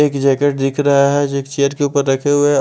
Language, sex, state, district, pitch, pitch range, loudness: Hindi, male, Odisha, Malkangiri, 140 Hz, 140-145 Hz, -15 LUFS